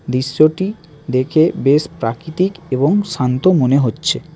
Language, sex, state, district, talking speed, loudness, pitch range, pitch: Bengali, male, West Bengal, Alipurduar, 110 wpm, -16 LUFS, 130-170 Hz, 155 Hz